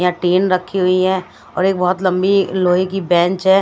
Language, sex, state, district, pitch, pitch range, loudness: Hindi, female, Delhi, New Delhi, 185 Hz, 180-190 Hz, -16 LUFS